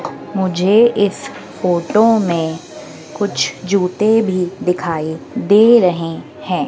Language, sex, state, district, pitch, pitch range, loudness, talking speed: Hindi, female, Madhya Pradesh, Dhar, 185 Hz, 170-210 Hz, -15 LUFS, 100 wpm